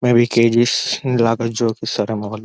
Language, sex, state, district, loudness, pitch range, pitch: Telugu, male, Telangana, Nalgonda, -17 LUFS, 110-120 Hz, 115 Hz